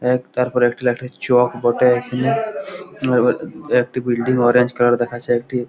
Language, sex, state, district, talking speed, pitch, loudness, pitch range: Bengali, male, West Bengal, Malda, 145 wpm, 125 Hz, -18 LUFS, 120-125 Hz